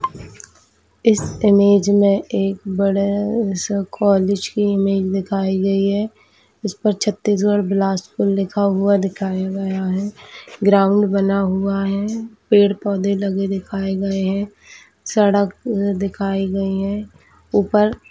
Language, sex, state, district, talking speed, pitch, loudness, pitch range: Hindi, female, Chhattisgarh, Bilaspur, 110 wpm, 200 Hz, -18 LUFS, 195-205 Hz